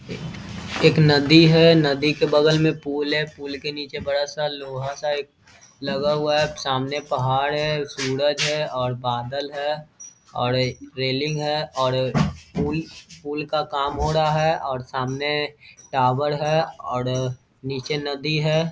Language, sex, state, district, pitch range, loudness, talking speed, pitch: Hindi, male, Bihar, Vaishali, 130-150 Hz, -22 LUFS, 155 wpm, 145 Hz